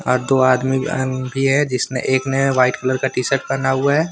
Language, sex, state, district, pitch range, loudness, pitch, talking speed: Hindi, male, Jharkhand, Deoghar, 130-135 Hz, -18 LUFS, 130 Hz, 220 wpm